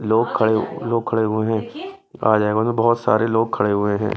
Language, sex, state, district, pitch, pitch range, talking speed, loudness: Hindi, male, Bihar, West Champaran, 110 Hz, 110-115 Hz, 200 wpm, -19 LUFS